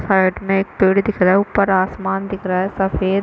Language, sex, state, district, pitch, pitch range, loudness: Hindi, female, Chhattisgarh, Bilaspur, 195 Hz, 190-195 Hz, -17 LUFS